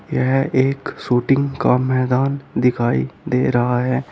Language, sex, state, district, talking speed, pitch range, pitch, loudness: Hindi, male, Uttar Pradesh, Shamli, 130 wpm, 125-135 Hz, 130 Hz, -18 LUFS